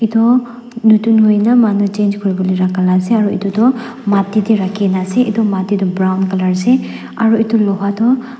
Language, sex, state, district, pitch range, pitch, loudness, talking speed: Nagamese, female, Nagaland, Dimapur, 195-230 Hz, 210 Hz, -13 LUFS, 180 wpm